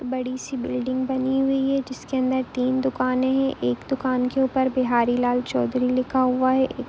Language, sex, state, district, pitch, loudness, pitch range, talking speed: Hindi, female, Jharkhand, Jamtara, 260 Hz, -23 LUFS, 255-265 Hz, 200 wpm